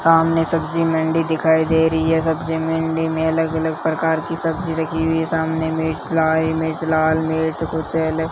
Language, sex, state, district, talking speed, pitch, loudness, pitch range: Hindi, female, Rajasthan, Bikaner, 195 wpm, 160 Hz, -19 LUFS, 160-165 Hz